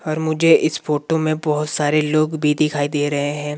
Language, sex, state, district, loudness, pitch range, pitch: Hindi, male, Himachal Pradesh, Shimla, -18 LUFS, 150-155 Hz, 150 Hz